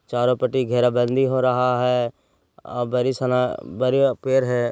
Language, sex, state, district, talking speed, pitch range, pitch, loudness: Hindi, male, Bihar, Jahanabad, 165 wpm, 125-130 Hz, 125 Hz, -21 LUFS